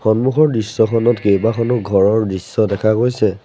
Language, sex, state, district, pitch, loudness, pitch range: Assamese, male, Assam, Sonitpur, 110 Hz, -16 LUFS, 105-120 Hz